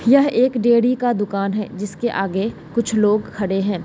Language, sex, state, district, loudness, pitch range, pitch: Hindi, female, Bihar, East Champaran, -19 LUFS, 195-240 Hz, 210 Hz